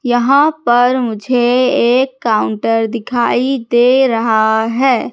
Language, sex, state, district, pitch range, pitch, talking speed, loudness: Hindi, female, Madhya Pradesh, Katni, 230-260 Hz, 245 Hz, 105 wpm, -13 LUFS